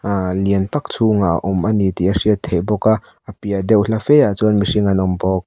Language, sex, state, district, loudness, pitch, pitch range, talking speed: Mizo, male, Mizoram, Aizawl, -16 LUFS, 100 Hz, 95-105 Hz, 220 wpm